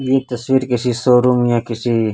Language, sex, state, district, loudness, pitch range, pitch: Hindi, male, Chhattisgarh, Raipur, -16 LUFS, 120-125 Hz, 125 Hz